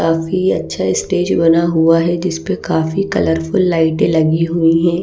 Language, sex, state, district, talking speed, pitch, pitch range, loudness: Hindi, female, Maharashtra, Washim, 165 wpm, 165 Hz, 160-170 Hz, -15 LUFS